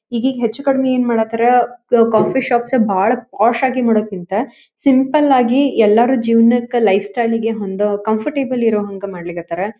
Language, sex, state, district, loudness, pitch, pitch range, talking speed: Kannada, female, Karnataka, Dharwad, -15 LUFS, 230 Hz, 215-250 Hz, 140 wpm